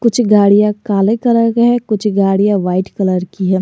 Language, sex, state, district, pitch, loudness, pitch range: Hindi, male, Jharkhand, Garhwa, 205 Hz, -13 LUFS, 195-230 Hz